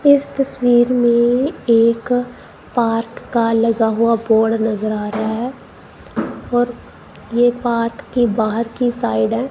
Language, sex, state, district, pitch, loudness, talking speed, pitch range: Hindi, female, Punjab, Kapurthala, 235 Hz, -17 LUFS, 130 wpm, 225-245 Hz